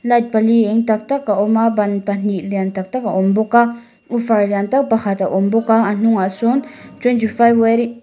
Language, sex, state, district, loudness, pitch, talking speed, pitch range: Mizo, female, Mizoram, Aizawl, -16 LUFS, 225 Hz, 225 wpm, 205-235 Hz